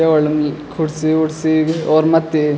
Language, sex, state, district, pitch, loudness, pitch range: Garhwali, male, Uttarakhand, Tehri Garhwal, 155 Hz, -16 LUFS, 150-160 Hz